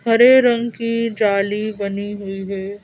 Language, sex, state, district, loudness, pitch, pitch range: Hindi, female, Madhya Pradesh, Bhopal, -18 LUFS, 210 Hz, 200-230 Hz